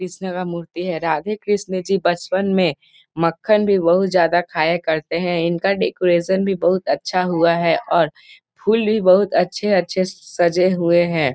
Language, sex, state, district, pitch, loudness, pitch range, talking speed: Hindi, male, Bihar, Gopalganj, 180 Hz, -18 LUFS, 170-190 Hz, 180 wpm